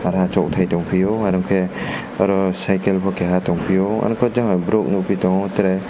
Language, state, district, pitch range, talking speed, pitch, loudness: Kokborok, Tripura, West Tripura, 90-95 Hz, 175 wpm, 95 Hz, -19 LUFS